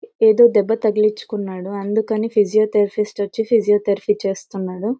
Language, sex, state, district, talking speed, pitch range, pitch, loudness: Telugu, female, Karnataka, Bellary, 120 wpm, 200-225 Hz, 210 Hz, -18 LUFS